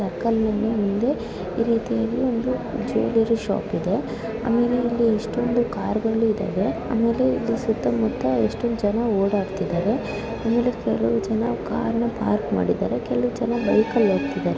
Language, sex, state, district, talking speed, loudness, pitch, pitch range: Kannada, female, Karnataka, Dharwad, 130 wpm, -23 LUFS, 230 Hz, 215-235 Hz